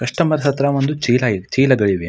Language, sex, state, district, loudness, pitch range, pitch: Kannada, male, Karnataka, Mysore, -17 LUFS, 110-140 Hz, 130 Hz